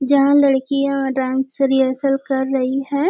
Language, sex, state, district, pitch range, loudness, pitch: Hindi, female, Maharashtra, Nagpur, 265-275 Hz, -18 LUFS, 275 Hz